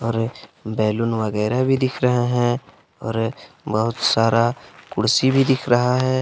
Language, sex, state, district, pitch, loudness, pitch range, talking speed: Hindi, male, Jharkhand, Palamu, 120 Hz, -20 LUFS, 115-130 Hz, 145 wpm